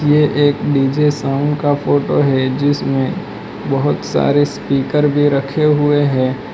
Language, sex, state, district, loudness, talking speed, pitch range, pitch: Hindi, male, Gujarat, Valsad, -15 LUFS, 145 wpm, 135-145 Hz, 145 Hz